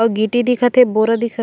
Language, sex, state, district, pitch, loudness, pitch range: Chhattisgarhi, female, Chhattisgarh, Raigarh, 230 Hz, -15 LUFS, 220-245 Hz